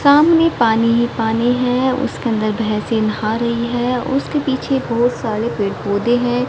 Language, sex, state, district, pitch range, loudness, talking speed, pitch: Hindi, female, Haryana, Jhajjar, 225-260 Hz, -17 LUFS, 155 wpm, 240 Hz